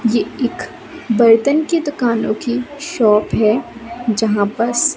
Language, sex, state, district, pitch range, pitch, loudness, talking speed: Hindi, female, Madhya Pradesh, Katni, 225-255 Hz, 235 Hz, -16 LUFS, 120 wpm